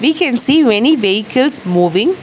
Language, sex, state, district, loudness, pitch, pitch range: English, female, Telangana, Hyderabad, -12 LUFS, 255 Hz, 200-305 Hz